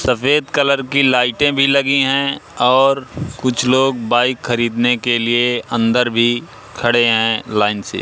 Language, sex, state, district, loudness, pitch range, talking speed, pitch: Hindi, male, Madhya Pradesh, Katni, -15 LUFS, 120-135 Hz, 150 wpm, 125 Hz